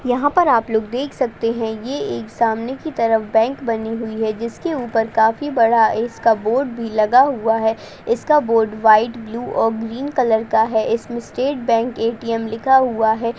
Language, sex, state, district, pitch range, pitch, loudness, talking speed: Hindi, female, Uttar Pradesh, Ghazipur, 225-250 Hz, 230 Hz, -18 LUFS, 190 wpm